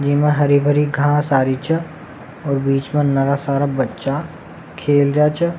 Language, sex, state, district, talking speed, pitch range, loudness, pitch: Rajasthani, male, Rajasthan, Nagaur, 170 wpm, 140-150 Hz, -17 LUFS, 145 Hz